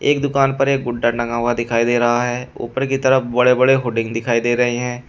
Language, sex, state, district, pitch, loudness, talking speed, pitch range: Hindi, male, Uttar Pradesh, Shamli, 120 Hz, -17 LUFS, 250 wpm, 120-130 Hz